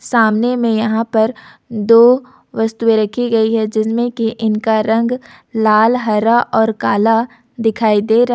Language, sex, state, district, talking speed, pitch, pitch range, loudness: Hindi, female, Jharkhand, Ranchi, 145 wpm, 225 Hz, 220-235 Hz, -14 LUFS